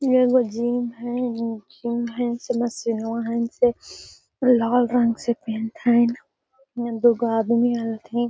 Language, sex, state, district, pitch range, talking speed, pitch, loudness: Magahi, female, Bihar, Gaya, 230-245 Hz, 145 wpm, 235 Hz, -22 LUFS